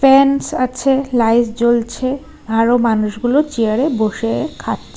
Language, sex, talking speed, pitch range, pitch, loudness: Bengali, female, 95 wpm, 225-270 Hz, 240 Hz, -16 LUFS